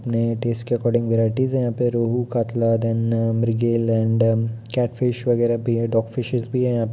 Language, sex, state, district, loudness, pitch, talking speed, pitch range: Hindi, male, Bihar, Muzaffarpur, -21 LUFS, 115 Hz, 205 wpm, 115-120 Hz